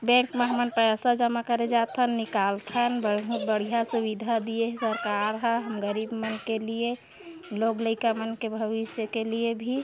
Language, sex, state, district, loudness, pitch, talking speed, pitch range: Hindi, female, Chhattisgarh, Korba, -27 LUFS, 225 Hz, 170 wpm, 220-240 Hz